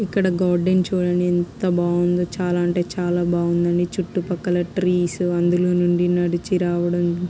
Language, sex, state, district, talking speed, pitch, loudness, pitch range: Telugu, female, Andhra Pradesh, Krishna, 125 wpm, 175 Hz, -20 LUFS, 175-180 Hz